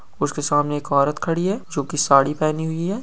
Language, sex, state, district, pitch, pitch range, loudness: Hindi, male, Bihar, Gopalganj, 150 Hz, 145-165 Hz, -20 LUFS